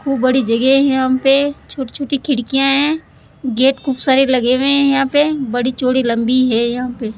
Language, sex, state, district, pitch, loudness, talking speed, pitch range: Hindi, female, Rajasthan, Jaipur, 265 Hz, -15 LUFS, 210 wpm, 250-275 Hz